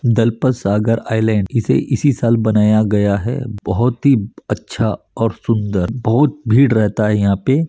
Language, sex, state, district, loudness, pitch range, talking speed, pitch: Hindi, male, Chhattisgarh, Bastar, -16 LUFS, 105-125 Hz, 165 wpm, 115 Hz